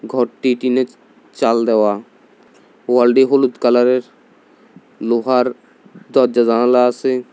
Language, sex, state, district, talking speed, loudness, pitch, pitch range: Bengali, male, Tripura, South Tripura, 115 wpm, -15 LUFS, 125 Hz, 120-130 Hz